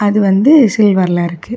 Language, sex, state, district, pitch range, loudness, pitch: Tamil, female, Tamil Nadu, Kanyakumari, 185-225 Hz, -11 LUFS, 205 Hz